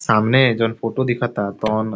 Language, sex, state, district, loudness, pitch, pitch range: Bhojpuri, male, Bihar, Saran, -18 LUFS, 115 Hz, 110-120 Hz